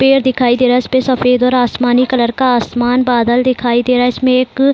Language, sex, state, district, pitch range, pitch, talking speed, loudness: Hindi, female, Bihar, Saran, 245-255 Hz, 250 Hz, 255 wpm, -12 LUFS